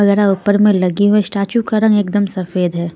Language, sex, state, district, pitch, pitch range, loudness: Hindi, female, Punjab, Pathankot, 200 Hz, 185-205 Hz, -14 LUFS